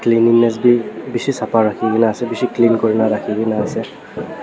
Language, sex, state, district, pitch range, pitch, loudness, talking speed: Nagamese, male, Nagaland, Dimapur, 110-115 Hz, 115 Hz, -16 LUFS, 135 wpm